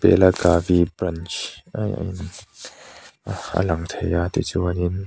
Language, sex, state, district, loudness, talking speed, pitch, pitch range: Mizo, male, Mizoram, Aizawl, -22 LUFS, 140 wpm, 90 Hz, 85-95 Hz